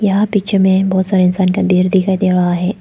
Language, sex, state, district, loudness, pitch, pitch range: Hindi, female, Arunachal Pradesh, Lower Dibang Valley, -13 LUFS, 190 Hz, 185-195 Hz